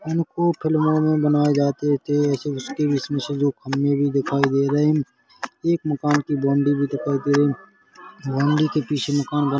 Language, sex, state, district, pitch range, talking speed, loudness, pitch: Hindi, male, Chhattisgarh, Korba, 140-150 Hz, 175 wpm, -21 LUFS, 145 Hz